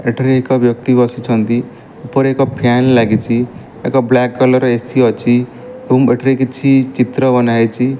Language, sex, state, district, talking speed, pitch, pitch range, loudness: Odia, male, Odisha, Malkangiri, 125 wpm, 125 Hz, 120-130 Hz, -13 LUFS